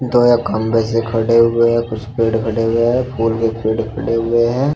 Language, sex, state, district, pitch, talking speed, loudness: Hindi, male, Uttar Pradesh, Shamli, 115 Hz, 215 wpm, -16 LUFS